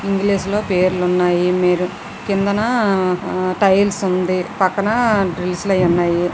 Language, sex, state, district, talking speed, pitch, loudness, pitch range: Telugu, female, Andhra Pradesh, Visakhapatnam, 115 wpm, 190 Hz, -17 LUFS, 180-200 Hz